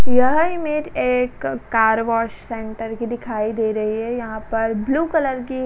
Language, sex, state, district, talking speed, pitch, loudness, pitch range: Hindi, female, Uttar Pradesh, Jalaun, 180 wpm, 230 Hz, -21 LUFS, 220-255 Hz